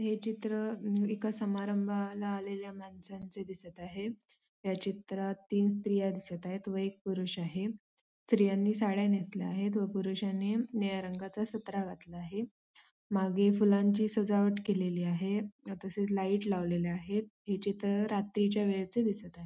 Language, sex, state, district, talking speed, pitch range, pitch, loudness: Marathi, female, Maharashtra, Sindhudurg, 140 wpm, 190-210 Hz, 200 Hz, -34 LUFS